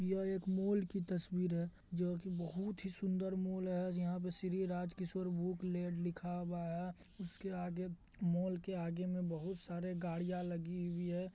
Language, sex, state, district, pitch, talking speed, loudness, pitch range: Hindi, male, Bihar, Madhepura, 180 Hz, 190 wpm, -41 LUFS, 175-185 Hz